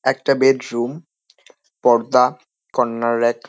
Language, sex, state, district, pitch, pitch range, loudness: Bengali, male, West Bengal, North 24 Parganas, 125 Hz, 120-135 Hz, -18 LUFS